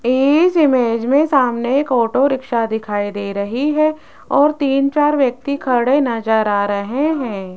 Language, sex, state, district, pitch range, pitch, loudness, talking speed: Hindi, female, Rajasthan, Jaipur, 225-285 Hz, 260 Hz, -16 LUFS, 160 wpm